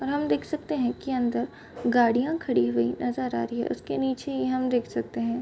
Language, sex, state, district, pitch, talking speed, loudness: Hindi, female, Bihar, Bhagalpur, 240 Hz, 220 wpm, -27 LUFS